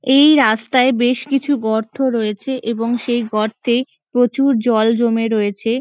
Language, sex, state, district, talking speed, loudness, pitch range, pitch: Bengali, female, West Bengal, North 24 Parganas, 135 wpm, -16 LUFS, 225-265 Hz, 240 Hz